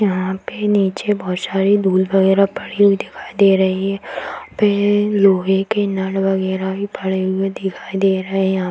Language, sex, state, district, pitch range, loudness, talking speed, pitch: Hindi, female, Bihar, Madhepura, 190-200 Hz, -17 LUFS, 185 wpm, 195 Hz